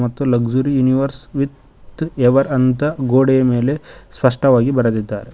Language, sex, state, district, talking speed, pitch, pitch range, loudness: Kannada, male, Karnataka, Koppal, 110 wpm, 130 Hz, 125-135 Hz, -16 LUFS